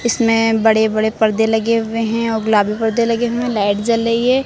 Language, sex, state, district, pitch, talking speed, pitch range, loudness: Hindi, female, Uttar Pradesh, Lucknow, 225 Hz, 215 wpm, 220-230 Hz, -16 LUFS